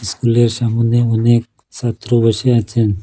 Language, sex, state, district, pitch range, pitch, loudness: Bengali, male, Assam, Hailakandi, 115-120 Hz, 115 Hz, -15 LUFS